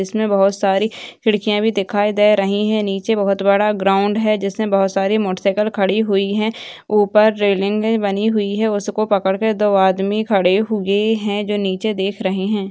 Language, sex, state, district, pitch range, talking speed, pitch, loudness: Hindi, female, Bihar, Saharsa, 195-215 Hz, 185 wpm, 205 Hz, -17 LUFS